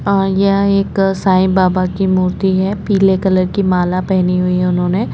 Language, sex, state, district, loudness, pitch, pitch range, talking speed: Hindi, female, Chhattisgarh, Rajnandgaon, -14 LUFS, 190 Hz, 185-195 Hz, 185 wpm